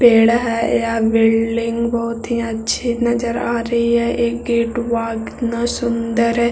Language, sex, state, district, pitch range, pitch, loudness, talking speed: Hindi, male, Bihar, Jahanabad, 230-235 Hz, 235 Hz, -18 LUFS, 165 wpm